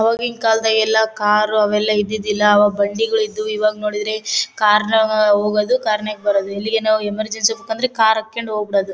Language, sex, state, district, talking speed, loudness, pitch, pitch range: Kannada, female, Karnataka, Bellary, 160 wpm, -17 LUFS, 215 Hz, 210-220 Hz